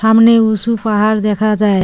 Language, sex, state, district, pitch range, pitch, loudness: Bengali, female, West Bengal, Cooch Behar, 210-225 Hz, 215 Hz, -12 LUFS